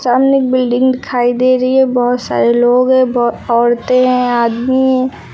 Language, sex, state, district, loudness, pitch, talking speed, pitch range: Hindi, female, Uttar Pradesh, Lucknow, -12 LUFS, 250 Hz, 170 wpm, 240-255 Hz